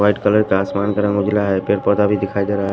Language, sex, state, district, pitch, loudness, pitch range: Hindi, male, Punjab, Pathankot, 100 Hz, -17 LUFS, 100-105 Hz